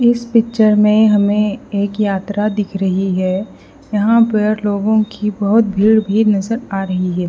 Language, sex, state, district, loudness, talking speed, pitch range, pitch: Hindi, female, Haryana, Rohtak, -15 LUFS, 165 wpm, 200-220 Hz, 210 Hz